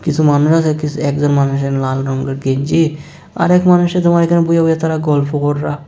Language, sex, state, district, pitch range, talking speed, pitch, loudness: Bengali, male, Tripura, West Tripura, 145-165 Hz, 175 wpm, 150 Hz, -14 LUFS